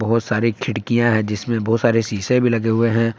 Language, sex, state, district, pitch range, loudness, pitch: Hindi, male, Jharkhand, Palamu, 110-115 Hz, -19 LUFS, 115 Hz